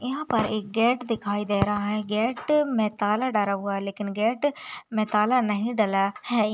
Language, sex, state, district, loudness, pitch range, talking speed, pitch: Hindi, female, Chhattisgarh, Raigarh, -25 LUFS, 205-245 Hz, 195 wpm, 215 Hz